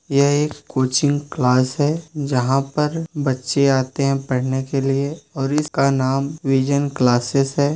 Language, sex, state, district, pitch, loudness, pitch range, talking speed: Hindi, male, Uttar Pradesh, Jyotiba Phule Nagar, 140 Hz, -19 LUFS, 130-145 Hz, 140 wpm